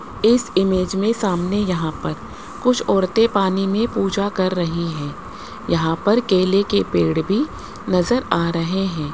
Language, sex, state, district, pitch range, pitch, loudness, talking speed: Hindi, female, Rajasthan, Jaipur, 170-205 Hz, 190 Hz, -19 LUFS, 155 wpm